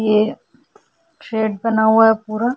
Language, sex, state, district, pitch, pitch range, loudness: Hindi, female, Goa, North and South Goa, 220 Hz, 220-230 Hz, -17 LUFS